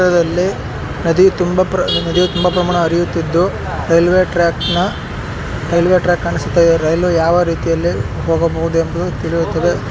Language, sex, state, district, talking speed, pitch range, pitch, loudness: Kannada, male, Karnataka, Shimoga, 75 wpm, 165-180 Hz, 170 Hz, -15 LUFS